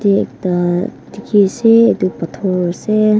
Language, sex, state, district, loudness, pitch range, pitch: Nagamese, female, Nagaland, Kohima, -15 LUFS, 180-215 Hz, 200 Hz